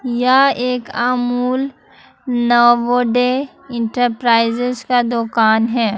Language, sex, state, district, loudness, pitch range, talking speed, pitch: Hindi, female, Jharkhand, Ranchi, -16 LUFS, 235-250 Hz, 80 wpm, 245 Hz